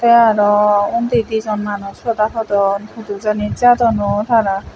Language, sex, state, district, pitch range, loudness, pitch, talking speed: Chakma, female, Tripura, West Tripura, 205-230 Hz, -15 LUFS, 215 Hz, 150 wpm